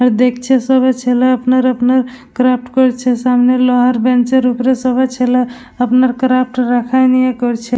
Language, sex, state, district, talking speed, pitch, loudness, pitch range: Bengali, female, West Bengal, Dakshin Dinajpur, 145 wpm, 250 Hz, -13 LUFS, 245-255 Hz